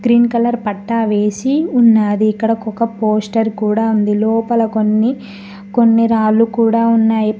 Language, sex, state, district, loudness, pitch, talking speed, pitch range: Telugu, female, Telangana, Mahabubabad, -14 LUFS, 225 Hz, 130 wpm, 215-230 Hz